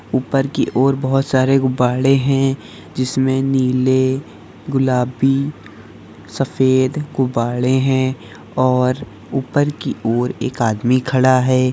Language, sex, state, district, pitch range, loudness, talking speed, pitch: Hindi, male, Bihar, Saharsa, 125-135 Hz, -17 LUFS, 105 wpm, 130 Hz